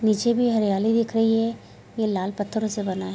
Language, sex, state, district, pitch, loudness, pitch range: Hindi, female, Bihar, Bhagalpur, 220 Hz, -23 LUFS, 205-225 Hz